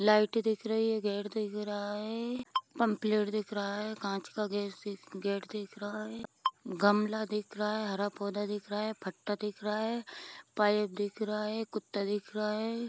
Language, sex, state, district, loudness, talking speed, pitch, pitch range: Hindi, female, Bihar, Vaishali, -34 LUFS, 190 wpm, 210 Hz, 205-220 Hz